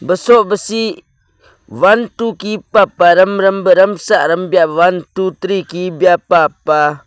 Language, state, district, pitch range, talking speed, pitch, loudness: Nyishi, Arunachal Pradesh, Papum Pare, 175-210 Hz, 145 wpm, 190 Hz, -12 LUFS